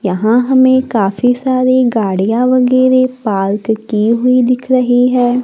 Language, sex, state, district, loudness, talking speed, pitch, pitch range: Hindi, female, Maharashtra, Gondia, -12 LUFS, 130 wpm, 250 Hz, 220-255 Hz